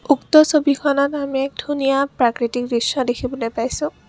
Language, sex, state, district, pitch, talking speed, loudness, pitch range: Assamese, female, Assam, Kamrup Metropolitan, 275 Hz, 130 wpm, -19 LUFS, 245-290 Hz